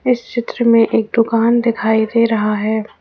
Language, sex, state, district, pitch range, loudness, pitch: Hindi, female, Jharkhand, Ranchi, 220-235 Hz, -15 LUFS, 230 Hz